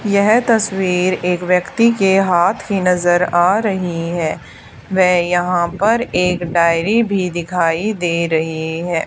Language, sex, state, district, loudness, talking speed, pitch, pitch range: Hindi, female, Haryana, Charkhi Dadri, -16 LUFS, 140 wpm, 180 Hz, 175-195 Hz